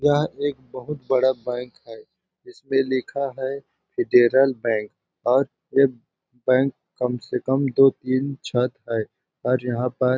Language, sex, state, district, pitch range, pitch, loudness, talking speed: Hindi, male, Chhattisgarh, Balrampur, 125-140 Hz, 130 Hz, -22 LUFS, 140 wpm